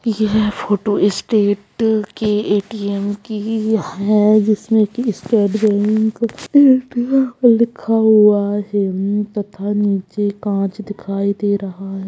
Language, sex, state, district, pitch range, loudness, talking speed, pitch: Magahi, female, Bihar, Gaya, 200-220 Hz, -16 LUFS, 125 wpm, 210 Hz